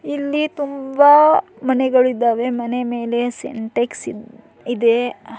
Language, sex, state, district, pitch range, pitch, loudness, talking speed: Kannada, male, Karnataka, Dharwad, 235-275 Hz, 245 Hz, -17 LUFS, 100 wpm